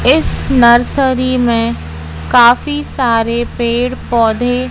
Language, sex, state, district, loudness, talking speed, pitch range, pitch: Hindi, female, Madhya Pradesh, Katni, -12 LUFS, 90 wpm, 230-255 Hz, 240 Hz